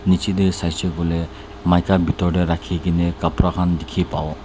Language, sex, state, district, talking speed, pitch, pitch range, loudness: Nagamese, male, Nagaland, Dimapur, 200 wpm, 90 Hz, 85-95 Hz, -20 LUFS